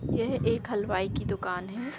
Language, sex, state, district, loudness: Hindi, female, Bihar, East Champaran, -30 LUFS